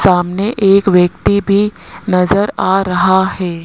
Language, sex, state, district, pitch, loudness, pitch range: Hindi, male, Rajasthan, Jaipur, 190 Hz, -13 LUFS, 180-200 Hz